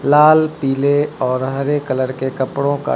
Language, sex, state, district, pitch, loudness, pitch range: Hindi, male, Uttar Pradesh, Lucknow, 140 Hz, -16 LUFS, 130-145 Hz